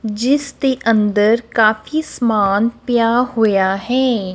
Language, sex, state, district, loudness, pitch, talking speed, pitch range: Punjabi, female, Punjab, Kapurthala, -16 LUFS, 230 Hz, 110 wpm, 210-250 Hz